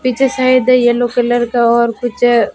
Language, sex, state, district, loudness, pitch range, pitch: Hindi, female, Rajasthan, Bikaner, -12 LUFS, 240-255 Hz, 245 Hz